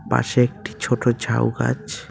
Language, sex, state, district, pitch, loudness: Bengali, male, West Bengal, Cooch Behar, 120 Hz, -21 LUFS